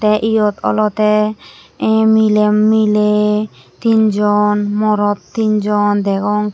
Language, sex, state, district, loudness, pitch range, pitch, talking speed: Chakma, female, Tripura, West Tripura, -14 LUFS, 210-215 Hz, 210 Hz, 100 wpm